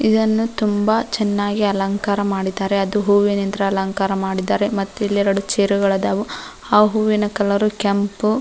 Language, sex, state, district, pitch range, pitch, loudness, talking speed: Kannada, female, Karnataka, Dharwad, 195-210 Hz, 205 Hz, -18 LUFS, 105 wpm